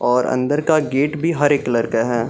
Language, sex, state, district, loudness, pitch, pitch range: Hindi, male, Bihar, Gaya, -18 LUFS, 140 Hz, 125-150 Hz